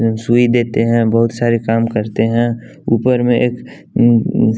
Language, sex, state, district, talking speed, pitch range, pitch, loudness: Hindi, male, Bihar, West Champaran, 155 wpm, 115-120 Hz, 115 Hz, -15 LUFS